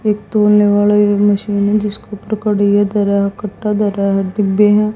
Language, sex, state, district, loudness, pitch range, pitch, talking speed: Hindi, female, Haryana, Jhajjar, -14 LUFS, 205-210 Hz, 205 Hz, 230 wpm